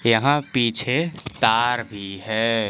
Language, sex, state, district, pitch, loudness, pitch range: Hindi, male, Jharkhand, Palamu, 120 Hz, -21 LUFS, 110-135 Hz